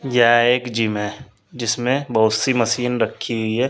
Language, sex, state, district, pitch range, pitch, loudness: Hindi, male, Uttar Pradesh, Saharanpur, 110-125 Hz, 120 Hz, -19 LUFS